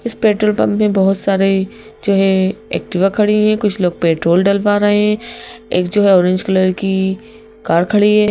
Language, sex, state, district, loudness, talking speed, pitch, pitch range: Hindi, female, Madhya Pradesh, Bhopal, -14 LUFS, 190 wpm, 200 Hz, 190-210 Hz